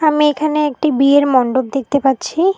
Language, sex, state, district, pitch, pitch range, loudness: Bengali, female, West Bengal, Alipurduar, 285 Hz, 270-305 Hz, -15 LUFS